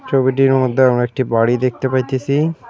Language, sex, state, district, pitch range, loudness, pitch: Bengali, male, West Bengal, Cooch Behar, 125-135 Hz, -16 LUFS, 130 Hz